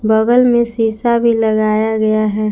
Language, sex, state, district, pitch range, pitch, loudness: Hindi, female, Jharkhand, Palamu, 215-235 Hz, 220 Hz, -14 LUFS